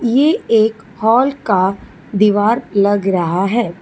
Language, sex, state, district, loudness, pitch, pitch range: Hindi, female, Telangana, Hyderabad, -15 LUFS, 215 Hz, 195-235 Hz